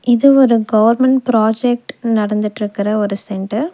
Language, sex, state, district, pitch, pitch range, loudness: Tamil, female, Tamil Nadu, Nilgiris, 225 Hz, 210-250 Hz, -14 LUFS